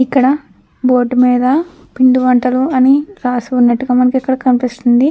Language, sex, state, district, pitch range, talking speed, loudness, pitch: Telugu, female, Andhra Pradesh, Krishna, 250-260 Hz, 115 wpm, -13 LUFS, 255 Hz